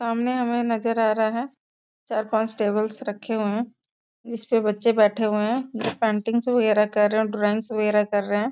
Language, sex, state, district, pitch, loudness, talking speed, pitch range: Hindi, female, Bihar, Sitamarhi, 220 Hz, -23 LUFS, 195 wpm, 210-230 Hz